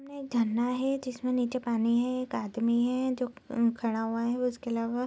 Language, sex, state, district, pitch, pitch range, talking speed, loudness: Hindi, female, Bihar, Bhagalpur, 245 Hz, 235-255 Hz, 225 wpm, -30 LUFS